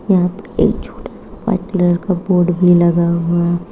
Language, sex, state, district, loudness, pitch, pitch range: Hindi, female, Uttar Pradesh, Shamli, -15 LUFS, 175 Hz, 175-190 Hz